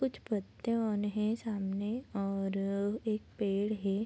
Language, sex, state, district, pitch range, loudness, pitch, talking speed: Hindi, female, Bihar, Madhepura, 200-220 Hz, -35 LUFS, 210 Hz, 135 wpm